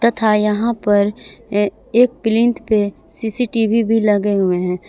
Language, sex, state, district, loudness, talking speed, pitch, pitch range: Hindi, female, Jharkhand, Palamu, -17 LUFS, 145 wpm, 220 Hz, 205-230 Hz